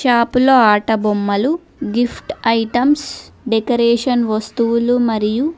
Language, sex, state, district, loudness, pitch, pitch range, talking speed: Telugu, female, Telangana, Mahabubabad, -16 LUFS, 235 Hz, 220-250 Hz, 95 wpm